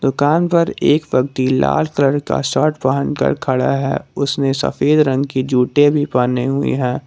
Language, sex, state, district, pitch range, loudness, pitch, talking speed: Hindi, male, Jharkhand, Garhwa, 130-145 Hz, -16 LUFS, 140 Hz, 180 wpm